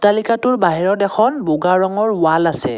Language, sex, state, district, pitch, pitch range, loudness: Assamese, male, Assam, Kamrup Metropolitan, 195 Hz, 165-220 Hz, -16 LUFS